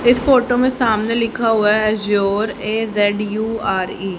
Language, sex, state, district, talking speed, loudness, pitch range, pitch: Hindi, female, Haryana, Charkhi Dadri, 145 wpm, -17 LUFS, 205-230 Hz, 215 Hz